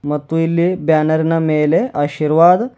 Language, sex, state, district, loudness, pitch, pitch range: Kannada, male, Karnataka, Bidar, -15 LUFS, 160 Hz, 150-170 Hz